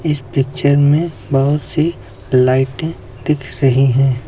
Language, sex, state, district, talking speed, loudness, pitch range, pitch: Hindi, male, Uttar Pradesh, Lucknow, 125 wpm, -15 LUFS, 130-150 Hz, 135 Hz